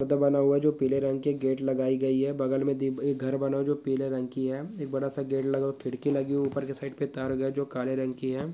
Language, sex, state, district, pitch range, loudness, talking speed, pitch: Hindi, male, Uttar Pradesh, Etah, 130-140 Hz, -29 LUFS, 295 wpm, 135 Hz